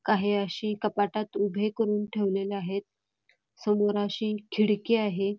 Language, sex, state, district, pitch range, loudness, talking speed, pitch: Marathi, female, Karnataka, Belgaum, 200-215 Hz, -28 LUFS, 120 wpm, 205 Hz